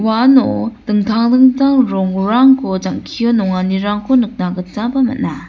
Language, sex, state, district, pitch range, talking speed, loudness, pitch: Garo, female, Meghalaya, West Garo Hills, 195-255 Hz, 100 wpm, -14 LUFS, 230 Hz